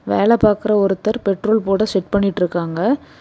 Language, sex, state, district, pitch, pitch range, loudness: Tamil, female, Tamil Nadu, Kanyakumari, 200 Hz, 190-215 Hz, -17 LUFS